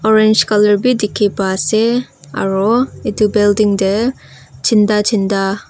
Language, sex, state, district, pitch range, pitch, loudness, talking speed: Nagamese, female, Nagaland, Kohima, 195-215 Hz, 210 Hz, -14 LUFS, 125 wpm